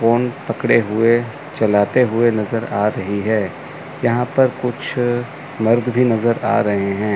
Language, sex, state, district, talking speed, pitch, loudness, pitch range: Hindi, male, Chandigarh, Chandigarh, 150 wpm, 115 Hz, -18 LUFS, 110-120 Hz